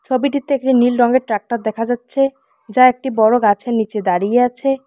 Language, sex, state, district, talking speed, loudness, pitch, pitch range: Bengali, female, West Bengal, Alipurduar, 170 wpm, -16 LUFS, 245 Hz, 220-265 Hz